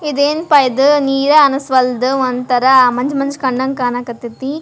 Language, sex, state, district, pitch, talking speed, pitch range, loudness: Kannada, female, Karnataka, Dharwad, 265 Hz, 130 wpm, 250-285 Hz, -13 LUFS